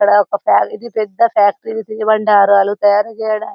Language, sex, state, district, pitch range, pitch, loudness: Telugu, female, Telangana, Karimnagar, 205-220 Hz, 210 Hz, -14 LUFS